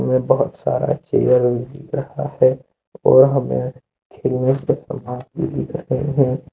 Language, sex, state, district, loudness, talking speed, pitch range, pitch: Hindi, male, Jharkhand, Deoghar, -19 LUFS, 140 wpm, 125-145 Hz, 130 Hz